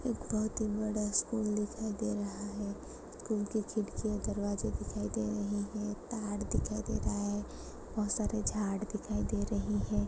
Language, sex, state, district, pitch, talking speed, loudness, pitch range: Hindi, female, Goa, North and South Goa, 210 Hz, 170 wpm, -35 LUFS, 200-215 Hz